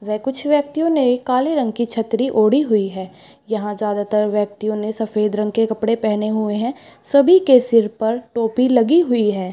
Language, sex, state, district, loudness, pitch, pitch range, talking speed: Hindi, female, Bihar, Madhepura, -18 LUFS, 225 Hz, 210-255 Hz, 200 wpm